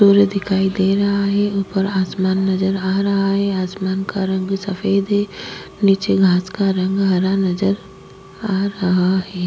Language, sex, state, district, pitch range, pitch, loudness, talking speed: Hindi, female, Maharashtra, Chandrapur, 190-200 Hz, 195 Hz, -18 LUFS, 150 wpm